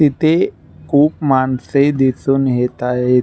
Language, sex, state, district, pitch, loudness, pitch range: Marathi, male, Maharashtra, Nagpur, 135 Hz, -15 LUFS, 125-145 Hz